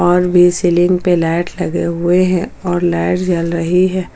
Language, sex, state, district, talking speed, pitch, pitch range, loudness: Hindi, female, Jharkhand, Palamu, 190 wpm, 175 Hz, 175-180 Hz, -14 LUFS